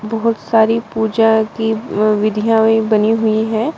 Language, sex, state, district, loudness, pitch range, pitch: Hindi, female, Uttar Pradesh, Shamli, -15 LUFS, 215-225 Hz, 220 Hz